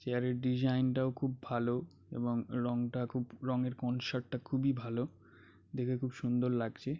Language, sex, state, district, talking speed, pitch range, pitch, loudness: Bengali, male, West Bengal, Jhargram, 155 wpm, 120-130 Hz, 125 Hz, -36 LUFS